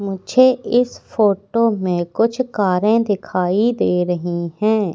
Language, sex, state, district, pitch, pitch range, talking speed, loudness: Hindi, female, Madhya Pradesh, Katni, 205 Hz, 180-230 Hz, 120 wpm, -18 LUFS